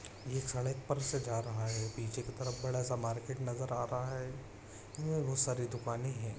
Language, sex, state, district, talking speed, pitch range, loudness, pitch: Hindi, male, Chhattisgarh, Raigarh, 205 wpm, 115-130 Hz, -38 LUFS, 125 Hz